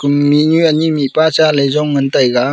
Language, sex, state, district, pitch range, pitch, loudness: Wancho, male, Arunachal Pradesh, Longding, 140-155 Hz, 150 Hz, -12 LUFS